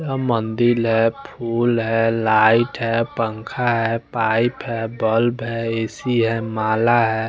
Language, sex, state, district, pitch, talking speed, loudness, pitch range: Hindi, male, Chandigarh, Chandigarh, 115 Hz, 140 wpm, -19 LUFS, 115-120 Hz